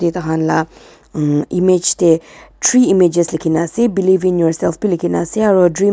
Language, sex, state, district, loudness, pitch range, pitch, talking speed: Nagamese, female, Nagaland, Dimapur, -14 LUFS, 165-190 Hz, 175 Hz, 200 wpm